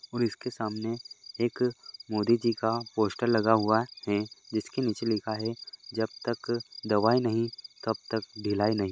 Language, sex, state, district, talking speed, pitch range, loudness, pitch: Hindi, male, Goa, North and South Goa, 155 wpm, 110-120 Hz, -29 LUFS, 110 Hz